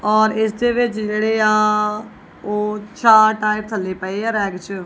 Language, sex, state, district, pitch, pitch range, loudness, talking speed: Punjabi, female, Punjab, Kapurthala, 215 Hz, 210-220 Hz, -18 LUFS, 175 wpm